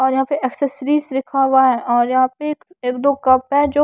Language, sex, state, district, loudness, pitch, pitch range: Hindi, female, Punjab, Kapurthala, -17 LUFS, 265 Hz, 260-285 Hz